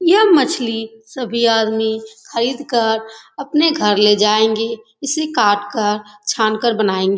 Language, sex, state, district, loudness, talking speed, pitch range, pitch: Hindi, female, Uttar Pradesh, Etah, -16 LUFS, 110 wpm, 215-250 Hz, 225 Hz